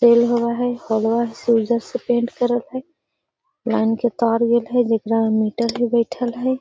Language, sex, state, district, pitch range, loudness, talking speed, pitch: Magahi, female, Bihar, Gaya, 230-245 Hz, -19 LUFS, 210 wpm, 235 Hz